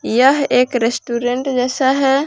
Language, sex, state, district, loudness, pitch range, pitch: Hindi, female, Jharkhand, Palamu, -16 LUFS, 245-270 Hz, 255 Hz